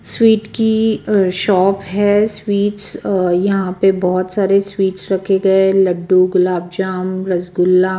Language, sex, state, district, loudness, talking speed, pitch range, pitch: Hindi, female, Bihar, West Champaran, -15 LUFS, 135 wpm, 185-205 Hz, 190 Hz